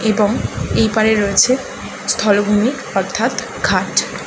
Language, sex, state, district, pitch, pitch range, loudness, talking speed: Bengali, female, West Bengal, Kolkata, 220 Hz, 210-230 Hz, -16 LUFS, 110 wpm